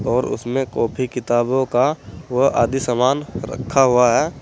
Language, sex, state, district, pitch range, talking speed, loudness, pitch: Hindi, male, Uttar Pradesh, Saharanpur, 120-135 Hz, 150 wpm, -19 LUFS, 130 Hz